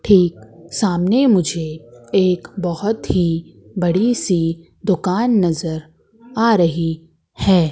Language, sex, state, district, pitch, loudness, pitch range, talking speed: Hindi, female, Madhya Pradesh, Katni, 175 Hz, -18 LUFS, 165-200 Hz, 100 wpm